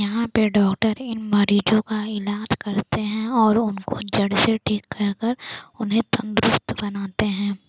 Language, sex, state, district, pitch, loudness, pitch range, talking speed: Hindi, female, Bihar, Jamui, 215 Hz, -22 LUFS, 205-225 Hz, 155 wpm